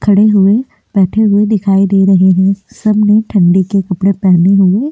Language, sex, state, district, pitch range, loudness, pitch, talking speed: Hindi, female, Goa, North and South Goa, 190-210 Hz, -10 LUFS, 195 Hz, 170 wpm